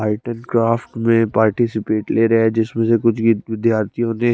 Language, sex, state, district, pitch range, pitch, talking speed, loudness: Hindi, male, Chandigarh, Chandigarh, 110-115 Hz, 115 Hz, 180 wpm, -17 LUFS